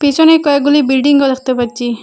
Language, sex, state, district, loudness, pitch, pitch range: Bengali, female, Assam, Hailakandi, -11 LUFS, 280 Hz, 255-290 Hz